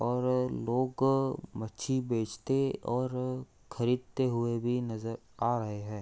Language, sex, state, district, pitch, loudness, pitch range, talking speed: Hindi, male, Uttar Pradesh, Hamirpur, 120 Hz, -32 LUFS, 115-130 Hz, 120 wpm